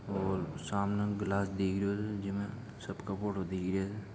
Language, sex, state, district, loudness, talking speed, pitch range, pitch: Marwari, male, Rajasthan, Nagaur, -35 LUFS, 145 wpm, 95-105 Hz, 100 Hz